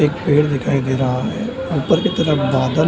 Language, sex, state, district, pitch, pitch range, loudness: Hindi, male, Bihar, Samastipur, 150 Hz, 135-170 Hz, -18 LUFS